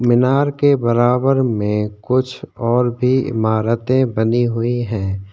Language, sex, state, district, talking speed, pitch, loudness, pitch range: Hindi, male, Uttarakhand, Tehri Garhwal, 125 wpm, 120 Hz, -17 LUFS, 110-130 Hz